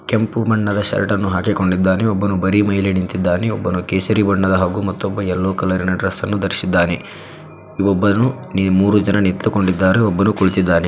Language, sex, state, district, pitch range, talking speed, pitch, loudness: Kannada, male, Karnataka, Dharwad, 95-105 Hz, 140 wpm, 95 Hz, -17 LUFS